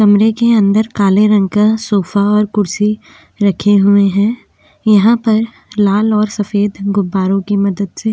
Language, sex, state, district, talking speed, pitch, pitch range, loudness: Hindi, female, Chhattisgarh, Korba, 160 wpm, 205 Hz, 200-215 Hz, -13 LUFS